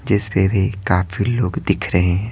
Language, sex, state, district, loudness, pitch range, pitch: Hindi, male, Bihar, Patna, -19 LUFS, 90-110 Hz, 100 Hz